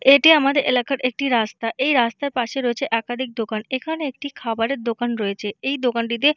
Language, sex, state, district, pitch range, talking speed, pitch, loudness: Bengali, female, West Bengal, Purulia, 230-275 Hz, 170 wpm, 250 Hz, -21 LUFS